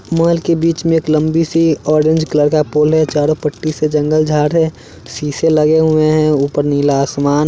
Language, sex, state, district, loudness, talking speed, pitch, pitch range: Hindi, male, Chandigarh, Chandigarh, -14 LUFS, 210 wpm, 155 Hz, 150-160 Hz